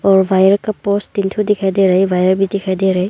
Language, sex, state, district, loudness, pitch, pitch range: Hindi, female, Arunachal Pradesh, Longding, -14 LUFS, 195 Hz, 190-200 Hz